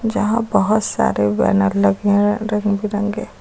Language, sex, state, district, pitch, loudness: Hindi, female, Uttar Pradesh, Lucknow, 205 Hz, -17 LUFS